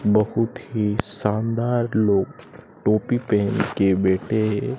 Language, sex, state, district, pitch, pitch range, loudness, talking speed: Hindi, male, Madhya Pradesh, Dhar, 110 Hz, 105-120 Hz, -22 LUFS, 115 wpm